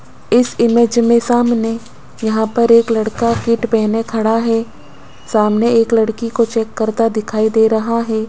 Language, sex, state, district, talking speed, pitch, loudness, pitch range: Hindi, female, Rajasthan, Jaipur, 160 wpm, 225 Hz, -15 LUFS, 220-235 Hz